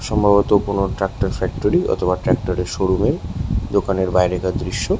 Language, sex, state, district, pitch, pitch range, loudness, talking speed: Bengali, male, West Bengal, Jhargram, 95 Hz, 90-105 Hz, -19 LUFS, 170 wpm